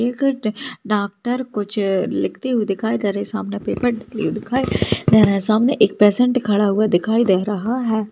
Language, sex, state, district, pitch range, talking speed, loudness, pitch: Hindi, female, Maharashtra, Chandrapur, 205-245 Hz, 200 wpm, -19 LUFS, 215 Hz